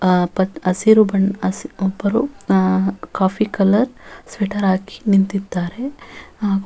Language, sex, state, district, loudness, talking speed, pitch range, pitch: Kannada, female, Karnataka, Bellary, -18 LUFS, 115 wpm, 190-210 Hz, 195 Hz